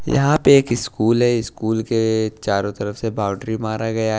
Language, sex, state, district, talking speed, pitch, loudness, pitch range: Hindi, male, Odisha, Nuapada, 185 wpm, 110 Hz, -19 LUFS, 110-115 Hz